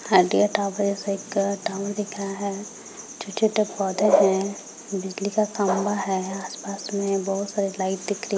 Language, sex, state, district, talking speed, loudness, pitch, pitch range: Hindi, female, Bihar, Saharsa, 145 wpm, -24 LUFS, 200 Hz, 195-205 Hz